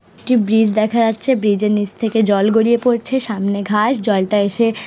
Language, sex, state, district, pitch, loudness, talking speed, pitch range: Bengali, female, West Bengal, Purulia, 220 Hz, -16 LUFS, 160 wpm, 205-230 Hz